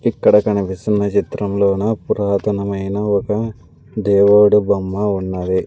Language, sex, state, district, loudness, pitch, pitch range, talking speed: Telugu, male, Andhra Pradesh, Sri Satya Sai, -16 LUFS, 100 Hz, 100-105 Hz, 85 wpm